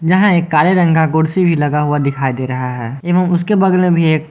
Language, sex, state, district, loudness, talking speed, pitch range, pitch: Hindi, male, Jharkhand, Garhwa, -14 LUFS, 265 wpm, 145-180 Hz, 160 Hz